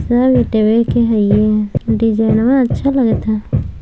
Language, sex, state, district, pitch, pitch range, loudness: Maithili, female, Bihar, Samastipur, 220 Hz, 210-235 Hz, -14 LUFS